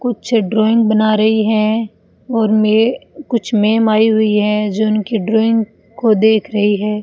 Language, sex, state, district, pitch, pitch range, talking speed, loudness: Hindi, female, Rajasthan, Bikaner, 220 Hz, 215-225 Hz, 160 wpm, -14 LUFS